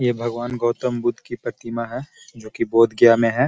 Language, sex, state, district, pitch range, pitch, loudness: Hindi, male, Bihar, Gaya, 115-120 Hz, 120 Hz, -20 LUFS